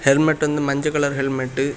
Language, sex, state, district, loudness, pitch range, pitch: Tamil, male, Tamil Nadu, Kanyakumari, -20 LUFS, 135-150 Hz, 140 Hz